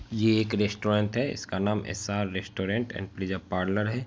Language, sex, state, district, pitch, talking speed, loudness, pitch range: Hindi, female, Bihar, Araria, 105 Hz, 205 wpm, -28 LUFS, 95-110 Hz